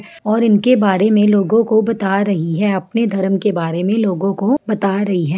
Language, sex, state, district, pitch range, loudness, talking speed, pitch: Hindi, female, Jharkhand, Sahebganj, 190-220 Hz, -15 LUFS, 210 wpm, 205 Hz